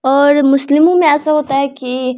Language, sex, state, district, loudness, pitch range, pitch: Hindi, female, Bihar, Samastipur, -12 LUFS, 270-300 Hz, 280 Hz